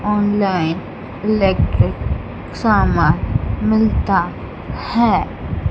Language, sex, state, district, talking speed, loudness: Hindi, female, Madhya Pradesh, Dhar, 55 wpm, -17 LUFS